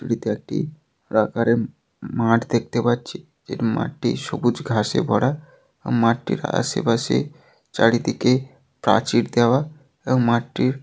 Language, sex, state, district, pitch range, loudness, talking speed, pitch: Bengali, male, West Bengal, Jalpaiguri, 115-130 Hz, -21 LUFS, 110 wpm, 120 Hz